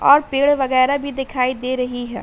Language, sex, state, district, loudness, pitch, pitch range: Hindi, female, Uttar Pradesh, Hamirpur, -18 LUFS, 260 Hz, 250-280 Hz